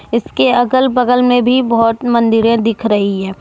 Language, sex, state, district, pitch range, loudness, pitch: Hindi, female, Jharkhand, Deoghar, 225-250 Hz, -13 LUFS, 235 Hz